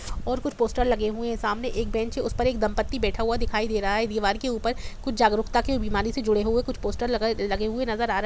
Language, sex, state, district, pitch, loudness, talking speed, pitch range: Hindi, female, Jharkhand, Jamtara, 225 Hz, -26 LUFS, 275 wpm, 215-245 Hz